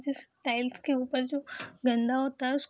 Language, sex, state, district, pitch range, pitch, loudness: Hindi, female, Bihar, Saharsa, 250-280 Hz, 265 Hz, -30 LUFS